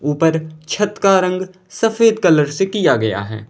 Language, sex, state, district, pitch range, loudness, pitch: Hindi, male, Uttar Pradesh, Lalitpur, 150-195 Hz, -16 LUFS, 185 Hz